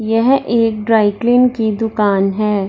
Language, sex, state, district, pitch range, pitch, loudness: Hindi, female, Bihar, Darbhanga, 210-230 Hz, 220 Hz, -14 LUFS